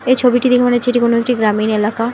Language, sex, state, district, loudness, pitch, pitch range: Bengali, female, West Bengal, Alipurduar, -14 LUFS, 245 Hz, 225-245 Hz